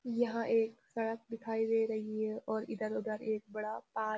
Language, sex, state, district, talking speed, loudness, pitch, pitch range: Hindi, female, Uttarakhand, Uttarkashi, 185 wpm, -36 LUFS, 220 Hz, 215-225 Hz